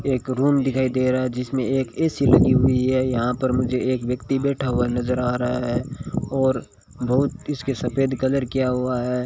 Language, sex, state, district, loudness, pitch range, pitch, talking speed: Hindi, male, Rajasthan, Bikaner, -22 LUFS, 125-135 Hz, 130 Hz, 200 wpm